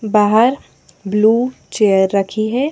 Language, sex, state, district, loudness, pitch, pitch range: Hindi, female, Madhya Pradesh, Bhopal, -15 LUFS, 215 Hz, 205-235 Hz